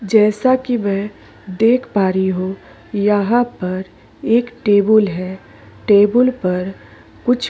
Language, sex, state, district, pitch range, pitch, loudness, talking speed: Hindi, female, Chhattisgarh, Korba, 190-240 Hz, 210 Hz, -16 LUFS, 130 wpm